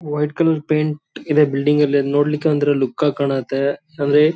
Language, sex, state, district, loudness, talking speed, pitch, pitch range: Kannada, male, Karnataka, Shimoga, -18 LUFS, 165 wpm, 150 Hz, 140-150 Hz